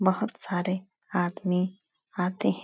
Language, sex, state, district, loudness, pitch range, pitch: Hindi, female, Uttar Pradesh, Etah, -29 LUFS, 180-195 Hz, 185 Hz